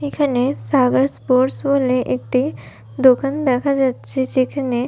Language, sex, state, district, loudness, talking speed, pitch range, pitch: Bengali, female, West Bengal, Malda, -18 LUFS, 110 wpm, 255-275 Hz, 260 Hz